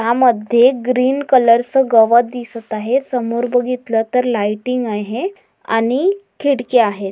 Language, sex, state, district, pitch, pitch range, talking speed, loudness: Marathi, female, Maharashtra, Pune, 245 Hz, 230-255 Hz, 120 wpm, -16 LUFS